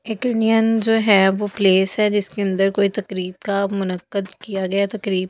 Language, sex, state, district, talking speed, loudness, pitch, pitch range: Hindi, female, Delhi, New Delhi, 180 wpm, -19 LUFS, 200 Hz, 190-210 Hz